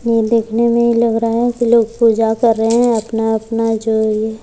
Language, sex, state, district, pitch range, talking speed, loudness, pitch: Hindi, female, Bihar, Muzaffarpur, 225-235 Hz, 190 wpm, -14 LUFS, 225 Hz